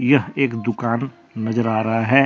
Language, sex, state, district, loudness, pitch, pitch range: Hindi, male, Jharkhand, Deoghar, -21 LUFS, 120 Hz, 115-135 Hz